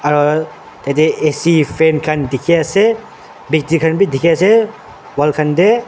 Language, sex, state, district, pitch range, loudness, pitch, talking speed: Nagamese, male, Nagaland, Dimapur, 145-170 Hz, -14 LUFS, 155 Hz, 145 wpm